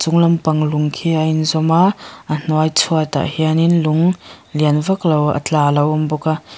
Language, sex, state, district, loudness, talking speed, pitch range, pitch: Mizo, female, Mizoram, Aizawl, -16 LUFS, 235 wpm, 150-165 Hz, 155 Hz